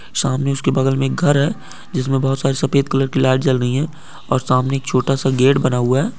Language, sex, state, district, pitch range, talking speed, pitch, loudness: Hindi, male, Bihar, Supaul, 130-140 Hz, 245 wpm, 135 Hz, -17 LUFS